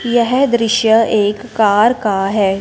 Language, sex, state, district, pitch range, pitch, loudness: Hindi, female, Punjab, Fazilka, 205-235 Hz, 220 Hz, -13 LUFS